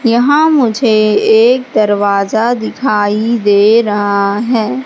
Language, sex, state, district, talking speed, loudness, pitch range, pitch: Hindi, female, Madhya Pradesh, Katni, 100 wpm, -11 LUFS, 205-235 Hz, 220 Hz